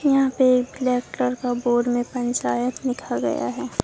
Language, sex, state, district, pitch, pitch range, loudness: Hindi, female, Bihar, Katihar, 245 Hz, 240-255 Hz, -22 LUFS